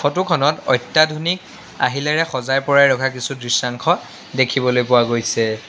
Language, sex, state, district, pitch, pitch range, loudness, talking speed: Assamese, male, Assam, Sonitpur, 135 Hz, 125-155 Hz, -18 LUFS, 125 wpm